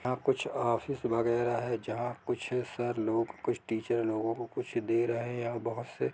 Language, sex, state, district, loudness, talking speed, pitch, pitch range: Hindi, male, Jharkhand, Jamtara, -33 LUFS, 195 wpm, 120 Hz, 115-120 Hz